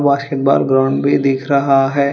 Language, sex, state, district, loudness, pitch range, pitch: Hindi, female, Telangana, Hyderabad, -14 LUFS, 135-140 Hz, 140 Hz